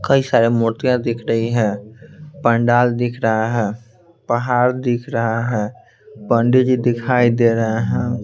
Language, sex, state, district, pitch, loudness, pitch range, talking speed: Hindi, male, Bihar, Patna, 120 Hz, -17 LUFS, 115-125 Hz, 145 wpm